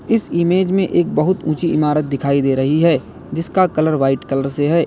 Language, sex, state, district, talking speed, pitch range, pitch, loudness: Hindi, male, Uttar Pradesh, Lalitpur, 210 wpm, 140-175 Hz, 155 Hz, -17 LUFS